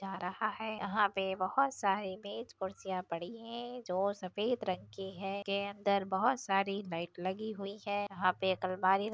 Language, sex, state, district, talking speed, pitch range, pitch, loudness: Hindi, female, Uttar Pradesh, Deoria, 205 wpm, 190-210 Hz, 195 Hz, -35 LUFS